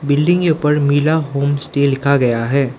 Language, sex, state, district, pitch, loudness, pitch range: Hindi, male, Arunachal Pradesh, Lower Dibang Valley, 140 Hz, -15 LUFS, 140-150 Hz